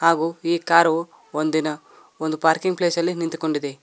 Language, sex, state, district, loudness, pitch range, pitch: Kannada, male, Karnataka, Koppal, -21 LUFS, 155-170 Hz, 165 Hz